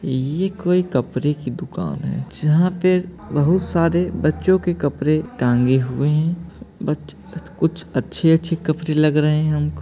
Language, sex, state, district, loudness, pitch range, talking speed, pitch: Angika, male, Bihar, Begusarai, -20 LUFS, 145-175 Hz, 160 wpm, 155 Hz